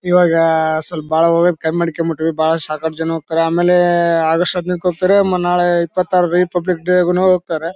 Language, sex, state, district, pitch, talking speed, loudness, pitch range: Kannada, male, Karnataka, Bellary, 170 Hz, 170 wpm, -15 LUFS, 165-180 Hz